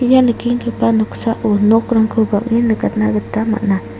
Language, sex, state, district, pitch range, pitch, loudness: Garo, female, Meghalaya, South Garo Hills, 205-235 Hz, 225 Hz, -15 LUFS